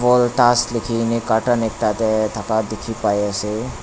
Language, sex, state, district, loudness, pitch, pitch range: Nagamese, male, Nagaland, Dimapur, -19 LUFS, 110 Hz, 110-120 Hz